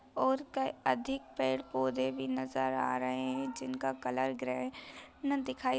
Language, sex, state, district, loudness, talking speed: Hindi, female, Bihar, East Champaran, -35 LUFS, 175 wpm